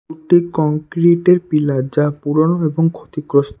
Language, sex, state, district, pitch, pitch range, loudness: Bengali, male, West Bengal, Alipurduar, 155 Hz, 150-170 Hz, -16 LUFS